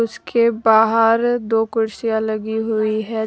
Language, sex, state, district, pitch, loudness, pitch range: Hindi, female, Jharkhand, Deoghar, 225 Hz, -18 LUFS, 220-230 Hz